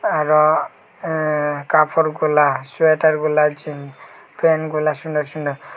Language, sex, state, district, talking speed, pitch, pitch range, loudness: Bengali, male, Tripura, Unakoti, 85 wpm, 155 Hz, 150-155 Hz, -18 LUFS